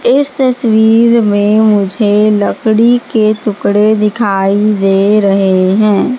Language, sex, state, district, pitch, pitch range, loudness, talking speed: Hindi, female, Madhya Pradesh, Katni, 215 Hz, 205-230 Hz, -10 LUFS, 105 wpm